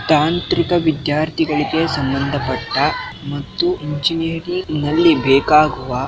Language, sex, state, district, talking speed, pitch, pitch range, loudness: Kannada, male, Karnataka, Shimoga, 70 wpm, 155 Hz, 145-165 Hz, -17 LUFS